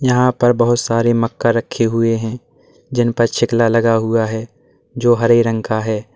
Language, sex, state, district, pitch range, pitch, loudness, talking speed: Hindi, male, Uttar Pradesh, Lalitpur, 115-120 Hz, 115 Hz, -16 LUFS, 175 wpm